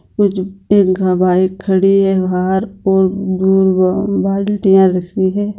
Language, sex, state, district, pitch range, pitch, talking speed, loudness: Hindi, female, Bihar, Jamui, 185-195 Hz, 190 Hz, 105 wpm, -14 LUFS